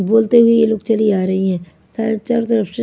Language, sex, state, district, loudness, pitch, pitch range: Hindi, female, Maharashtra, Mumbai Suburban, -15 LUFS, 220 Hz, 190-230 Hz